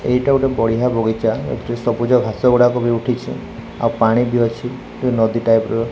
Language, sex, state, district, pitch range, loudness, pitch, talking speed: Odia, male, Odisha, Khordha, 115-125 Hz, -17 LUFS, 120 Hz, 180 wpm